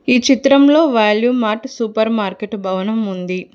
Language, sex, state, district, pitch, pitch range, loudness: Telugu, female, Telangana, Hyderabad, 220 Hz, 210-255 Hz, -15 LUFS